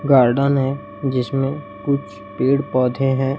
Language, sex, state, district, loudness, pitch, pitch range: Hindi, male, Chhattisgarh, Raipur, -19 LUFS, 135 Hz, 135-140 Hz